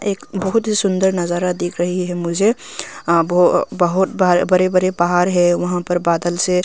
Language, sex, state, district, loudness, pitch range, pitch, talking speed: Hindi, female, Arunachal Pradesh, Longding, -17 LUFS, 175-185 Hz, 180 Hz, 180 wpm